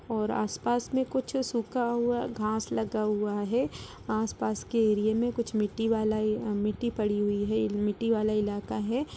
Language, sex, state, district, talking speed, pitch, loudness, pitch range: Hindi, female, Bihar, Gaya, 165 wpm, 215 Hz, -29 LUFS, 210-235 Hz